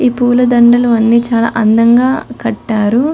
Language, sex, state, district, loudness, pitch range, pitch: Telugu, female, Telangana, Karimnagar, -11 LUFS, 230-245 Hz, 235 Hz